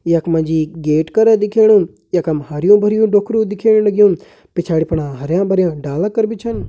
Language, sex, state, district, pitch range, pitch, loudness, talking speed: Hindi, male, Uttarakhand, Uttarkashi, 160-215 Hz, 185 Hz, -15 LUFS, 180 wpm